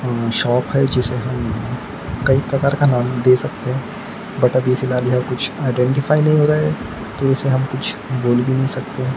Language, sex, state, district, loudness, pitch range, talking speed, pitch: Hindi, male, Maharashtra, Gondia, -18 LUFS, 125-135 Hz, 190 wpm, 130 Hz